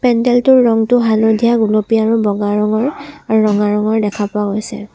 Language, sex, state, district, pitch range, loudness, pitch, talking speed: Assamese, female, Assam, Sonitpur, 210-235 Hz, -14 LUFS, 220 Hz, 155 wpm